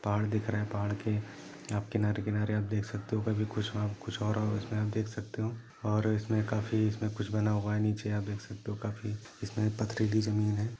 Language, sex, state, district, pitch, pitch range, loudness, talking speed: Hindi, male, Jharkhand, Jamtara, 105 Hz, 105-110 Hz, -33 LUFS, 265 wpm